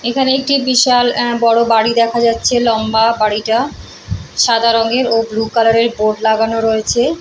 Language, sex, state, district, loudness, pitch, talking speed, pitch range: Bengali, female, West Bengal, Purulia, -13 LUFS, 230 Hz, 165 wpm, 225-240 Hz